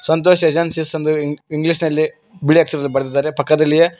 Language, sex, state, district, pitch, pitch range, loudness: Kannada, male, Karnataka, Koppal, 155 Hz, 150-165 Hz, -16 LUFS